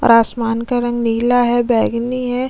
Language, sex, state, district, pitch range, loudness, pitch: Hindi, female, Goa, North and South Goa, 230-245 Hz, -16 LUFS, 240 Hz